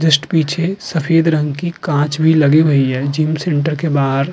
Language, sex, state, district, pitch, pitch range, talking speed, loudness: Hindi, male, Uttar Pradesh, Muzaffarnagar, 155 Hz, 145-165 Hz, 210 wpm, -15 LUFS